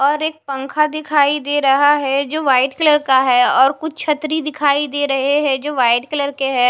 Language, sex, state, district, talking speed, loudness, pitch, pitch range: Hindi, female, Maharashtra, Mumbai Suburban, 215 wpm, -16 LUFS, 285 Hz, 270-300 Hz